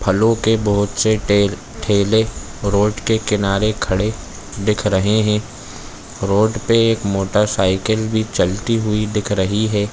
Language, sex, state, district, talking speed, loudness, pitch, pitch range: Hindi, male, Chhattisgarh, Bilaspur, 150 wpm, -17 LUFS, 105 Hz, 100-110 Hz